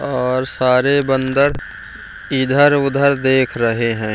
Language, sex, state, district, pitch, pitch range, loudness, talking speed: Hindi, male, Bihar, Jamui, 130 Hz, 125-140 Hz, -15 LUFS, 100 wpm